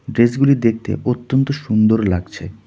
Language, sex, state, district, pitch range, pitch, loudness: Bengali, male, West Bengal, Darjeeling, 110-135 Hz, 115 Hz, -17 LUFS